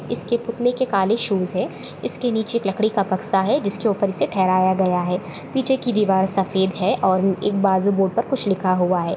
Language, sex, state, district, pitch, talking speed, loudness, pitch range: Hindi, female, Goa, North and South Goa, 195 Hz, 215 wpm, -19 LUFS, 190-225 Hz